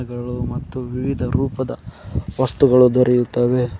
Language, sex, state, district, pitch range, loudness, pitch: Kannada, male, Karnataka, Koppal, 120-130 Hz, -19 LUFS, 125 Hz